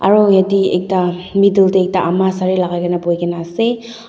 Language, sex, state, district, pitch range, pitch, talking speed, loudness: Nagamese, female, Nagaland, Dimapur, 175-200 Hz, 185 Hz, 160 wpm, -15 LUFS